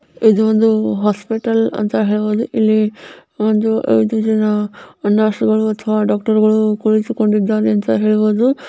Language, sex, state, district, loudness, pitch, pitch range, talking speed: Kannada, female, Karnataka, Raichur, -15 LUFS, 215 Hz, 210-220 Hz, 110 wpm